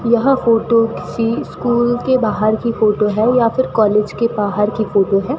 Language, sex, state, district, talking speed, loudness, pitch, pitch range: Hindi, female, Rajasthan, Bikaner, 190 wpm, -15 LUFS, 230 Hz, 210-240 Hz